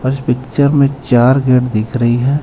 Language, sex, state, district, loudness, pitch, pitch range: Hindi, male, Jharkhand, Ranchi, -13 LUFS, 130 Hz, 125-140 Hz